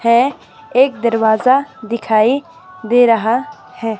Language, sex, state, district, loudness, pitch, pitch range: Hindi, female, Himachal Pradesh, Shimla, -15 LUFS, 235 Hz, 225-270 Hz